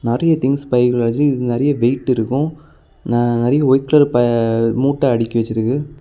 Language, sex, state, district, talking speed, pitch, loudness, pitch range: Tamil, male, Tamil Nadu, Kanyakumari, 140 wpm, 125 Hz, -16 LUFS, 120-140 Hz